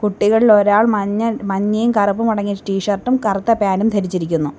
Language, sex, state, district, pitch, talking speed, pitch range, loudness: Malayalam, female, Kerala, Kollam, 205 Hz, 145 wpm, 195-220 Hz, -16 LUFS